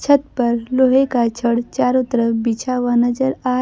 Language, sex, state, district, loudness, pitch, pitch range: Hindi, female, Bihar, Kaimur, -17 LUFS, 245 Hz, 235-260 Hz